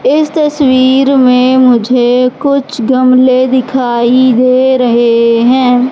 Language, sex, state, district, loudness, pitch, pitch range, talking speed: Hindi, female, Madhya Pradesh, Katni, -8 LUFS, 255 Hz, 245-260 Hz, 100 wpm